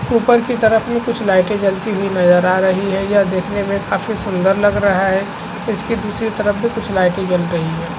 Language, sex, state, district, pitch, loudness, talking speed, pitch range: Hindi, male, Chhattisgarh, Raigarh, 200 Hz, -16 LUFS, 220 wpm, 190-220 Hz